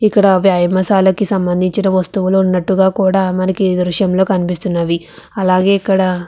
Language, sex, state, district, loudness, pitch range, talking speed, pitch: Telugu, female, Andhra Pradesh, Visakhapatnam, -14 LUFS, 185-195 Hz, 125 wpm, 190 Hz